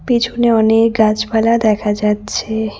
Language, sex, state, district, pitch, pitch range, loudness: Bengali, female, West Bengal, Cooch Behar, 220 Hz, 215-230 Hz, -14 LUFS